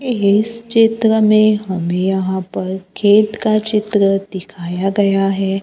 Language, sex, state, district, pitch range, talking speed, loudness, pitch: Hindi, male, Maharashtra, Gondia, 190-215 Hz, 130 wpm, -15 LUFS, 200 Hz